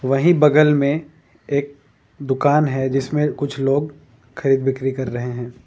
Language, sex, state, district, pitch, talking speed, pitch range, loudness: Hindi, male, Jharkhand, Ranchi, 140 Hz, 150 wpm, 130-145 Hz, -19 LUFS